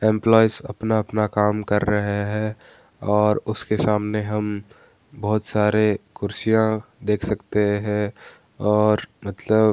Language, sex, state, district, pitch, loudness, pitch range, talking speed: Hindi, male, Bihar, Gaya, 105 Hz, -22 LUFS, 105-110 Hz, 115 wpm